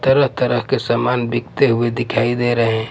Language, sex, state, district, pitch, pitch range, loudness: Hindi, male, Punjab, Pathankot, 120 Hz, 120-125 Hz, -17 LUFS